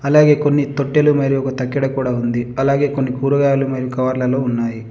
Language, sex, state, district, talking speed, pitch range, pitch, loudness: Telugu, male, Telangana, Adilabad, 170 wpm, 130-140 Hz, 135 Hz, -17 LUFS